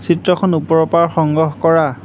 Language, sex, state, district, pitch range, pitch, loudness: Assamese, male, Assam, Hailakandi, 160-170 Hz, 165 Hz, -14 LUFS